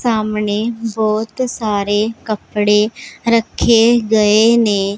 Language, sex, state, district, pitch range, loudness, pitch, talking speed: Punjabi, female, Punjab, Pathankot, 210-230 Hz, -15 LUFS, 220 Hz, 85 wpm